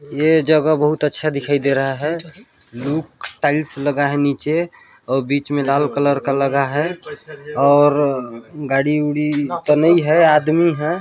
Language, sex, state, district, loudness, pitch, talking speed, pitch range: Chhattisgarhi, male, Chhattisgarh, Balrampur, -17 LUFS, 145 Hz, 160 wpm, 140-155 Hz